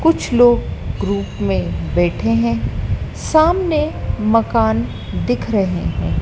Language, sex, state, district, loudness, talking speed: Hindi, female, Madhya Pradesh, Dhar, -17 LUFS, 105 wpm